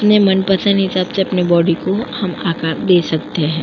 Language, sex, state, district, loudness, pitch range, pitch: Hindi, female, Uttar Pradesh, Jyotiba Phule Nagar, -15 LUFS, 170-195 Hz, 185 Hz